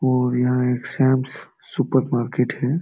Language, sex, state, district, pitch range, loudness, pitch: Hindi, male, Bihar, Jamui, 125-130 Hz, -21 LUFS, 130 Hz